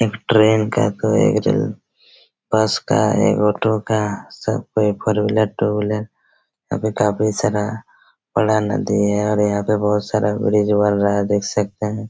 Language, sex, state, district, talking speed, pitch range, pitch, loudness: Hindi, male, Chhattisgarh, Raigarh, 175 wpm, 105-110 Hz, 105 Hz, -18 LUFS